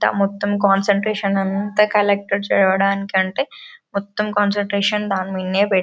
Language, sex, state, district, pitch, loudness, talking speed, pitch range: Telugu, female, Telangana, Karimnagar, 200 Hz, -19 LUFS, 125 wpm, 195-210 Hz